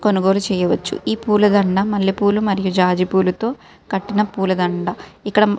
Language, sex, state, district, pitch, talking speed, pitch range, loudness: Telugu, female, Telangana, Karimnagar, 195 Hz, 160 wpm, 190-210 Hz, -18 LUFS